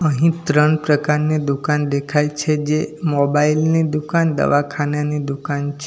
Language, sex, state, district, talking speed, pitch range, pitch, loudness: Gujarati, male, Gujarat, Valsad, 135 wpm, 145-155 Hz, 150 Hz, -18 LUFS